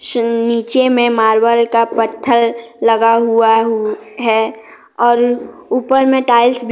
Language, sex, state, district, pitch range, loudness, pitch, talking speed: Hindi, female, Jharkhand, Deoghar, 225-240 Hz, -13 LUFS, 235 Hz, 135 wpm